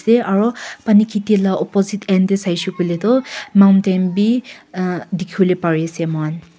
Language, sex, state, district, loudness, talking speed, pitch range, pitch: Nagamese, female, Nagaland, Kohima, -17 LUFS, 165 wpm, 180-210 Hz, 190 Hz